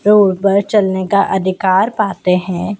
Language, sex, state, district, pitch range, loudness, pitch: Hindi, female, Madhya Pradesh, Dhar, 185-205 Hz, -14 LUFS, 195 Hz